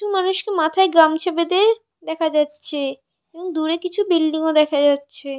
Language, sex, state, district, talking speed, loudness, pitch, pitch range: Bengali, female, West Bengal, North 24 Parganas, 145 wpm, -19 LUFS, 320 Hz, 300-375 Hz